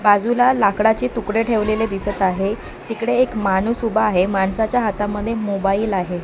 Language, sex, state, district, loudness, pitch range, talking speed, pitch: Marathi, female, Maharashtra, Mumbai Suburban, -19 LUFS, 195-230 Hz, 145 wpm, 215 Hz